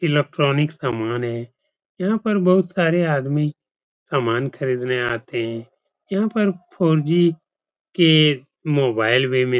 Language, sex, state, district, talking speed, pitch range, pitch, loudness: Hindi, male, Uttar Pradesh, Etah, 130 wpm, 125-175 Hz, 145 Hz, -20 LUFS